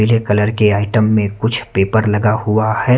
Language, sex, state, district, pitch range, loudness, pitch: Hindi, male, Haryana, Charkhi Dadri, 105-110 Hz, -15 LUFS, 110 Hz